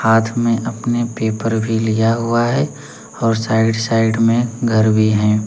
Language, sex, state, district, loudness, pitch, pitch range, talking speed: Hindi, male, Uttar Pradesh, Lalitpur, -16 LUFS, 115 Hz, 110-115 Hz, 165 wpm